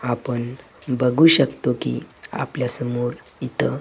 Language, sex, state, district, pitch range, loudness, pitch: Marathi, male, Maharashtra, Gondia, 120-125 Hz, -20 LUFS, 125 Hz